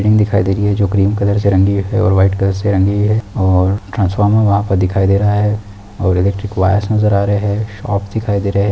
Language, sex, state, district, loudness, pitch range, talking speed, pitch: Hindi, male, Uttar Pradesh, Deoria, -14 LUFS, 95-105 Hz, 255 wpm, 100 Hz